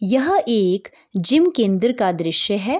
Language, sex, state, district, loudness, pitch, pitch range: Hindi, female, Bihar, Gopalganj, -19 LUFS, 210 Hz, 190-260 Hz